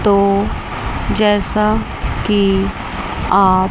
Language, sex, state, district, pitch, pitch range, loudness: Hindi, female, Chandigarh, Chandigarh, 195 Hz, 135-205 Hz, -16 LUFS